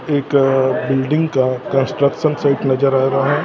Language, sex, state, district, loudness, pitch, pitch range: Hindi, male, Maharashtra, Gondia, -16 LUFS, 135 Hz, 130-145 Hz